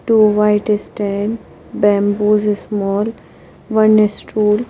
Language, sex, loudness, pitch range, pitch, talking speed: English, female, -15 LUFS, 205-215 Hz, 210 Hz, 115 wpm